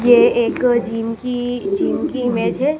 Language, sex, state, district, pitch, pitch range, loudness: Hindi, female, Madhya Pradesh, Dhar, 245 Hz, 235-265 Hz, -18 LUFS